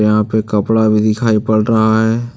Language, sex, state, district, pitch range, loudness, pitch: Hindi, male, Jharkhand, Deoghar, 105-110 Hz, -13 LUFS, 110 Hz